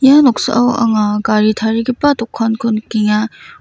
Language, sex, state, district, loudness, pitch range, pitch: Garo, female, Meghalaya, West Garo Hills, -14 LUFS, 215-245 Hz, 225 Hz